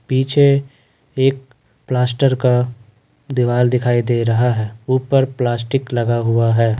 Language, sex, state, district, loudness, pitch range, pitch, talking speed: Hindi, male, Jharkhand, Ranchi, -17 LUFS, 120-135 Hz, 125 Hz, 125 wpm